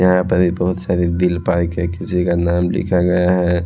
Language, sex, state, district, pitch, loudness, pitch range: Hindi, male, Chhattisgarh, Raipur, 90 Hz, -17 LUFS, 85-90 Hz